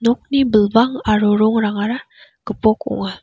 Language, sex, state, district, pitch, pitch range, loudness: Garo, female, Meghalaya, West Garo Hills, 220 Hz, 210-245 Hz, -16 LUFS